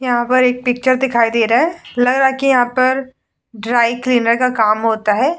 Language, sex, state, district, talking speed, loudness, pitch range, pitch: Hindi, female, Bihar, Vaishali, 235 wpm, -15 LUFS, 235-260 Hz, 245 Hz